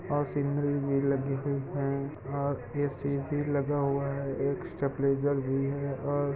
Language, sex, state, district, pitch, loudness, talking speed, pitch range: Hindi, male, Uttar Pradesh, Jalaun, 140 Hz, -31 LUFS, 160 wpm, 140-145 Hz